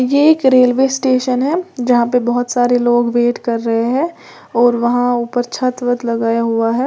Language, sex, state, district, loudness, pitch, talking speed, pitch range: Hindi, female, Uttar Pradesh, Lalitpur, -15 LUFS, 245 Hz, 190 wpm, 240-255 Hz